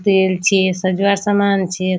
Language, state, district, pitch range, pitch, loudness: Surjapuri, Bihar, Kishanganj, 185-200 Hz, 190 Hz, -16 LUFS